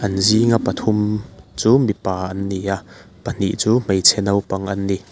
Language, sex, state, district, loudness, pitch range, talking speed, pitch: Mizo, male, Mizoram, Aizawl, -18 LUFS, 95-110 Hz, 165 wpm, 100 Hz